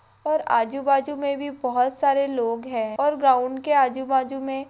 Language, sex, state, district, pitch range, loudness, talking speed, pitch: Hindi, female, Rajasthan, Nagaur, 255-280 Hz, -23 LUFS, 190 wpm, 270 Hz